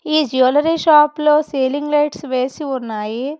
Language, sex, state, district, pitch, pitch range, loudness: Telugu, female, Telangana, Hyderabad, 290 Hz, 260-300 Hz, -16 LUFS